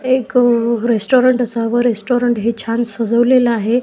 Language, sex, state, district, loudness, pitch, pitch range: Marathi, male, Maharashtra, Washim, -15 LUFS, 240 Hz, 230-245 Hz